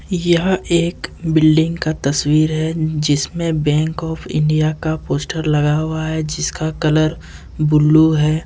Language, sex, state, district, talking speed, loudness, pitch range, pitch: Hindi, male, Jharkhand, Ranchi, 135 wpm, -17 LUFS, 155-160 Hz, 155 Hz